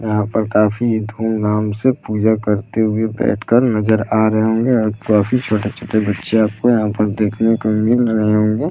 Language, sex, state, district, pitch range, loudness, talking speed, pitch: Hindi, male, Bihar, Saran, 105-115 Hz, -16 LUFS, 180 wpm, 110 Hz